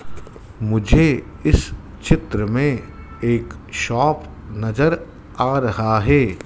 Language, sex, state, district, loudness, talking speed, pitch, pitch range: Hindi, male, Madhya Pradesh, Dhar, -19 LUFS, 95 wpm, 110 Hz, 100-135 Hz